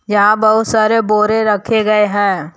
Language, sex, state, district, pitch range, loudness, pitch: Hindi, male, Jharkhand, Deoghar, 205-220 Hz, -13 LUFS, 215 Hz